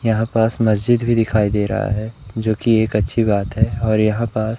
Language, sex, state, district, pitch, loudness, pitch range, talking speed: Hindi, male, Madhya Pradesh, Umaria, 110 Hz, -18 LUFS, 110-115 Hz, 220 wpm